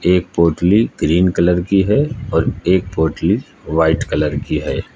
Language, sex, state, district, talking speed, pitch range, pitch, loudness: Hindi, male, Uttar Pradesh, Lucknow, 155 wpm, 85-100 Hz, 90 Hz, -16 LUFS